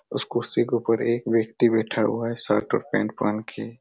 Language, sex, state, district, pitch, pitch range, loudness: Hindi, male, Chhattisgarh, Raigarh, 115 Hz, 110-115 Hz, -24 LUFS